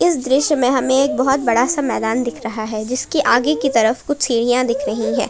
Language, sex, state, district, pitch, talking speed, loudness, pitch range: Hindi, female, Jharkhand, Palamu, 255 Hz, 235 wpm, -17 LUFS, 235-275 Hz